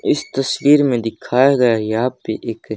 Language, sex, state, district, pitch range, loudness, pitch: Hindi, male, Haryana, Jhajjar, 115-135 Hz, -17 LUFS, 125 Hz